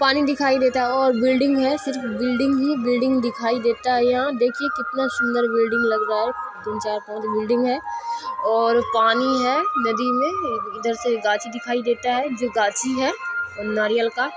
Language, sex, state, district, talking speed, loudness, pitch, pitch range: Maithili, female, Bihar, Supaul, 190 wpm, -21 LUFS, 245 Hz, 235-270 Hz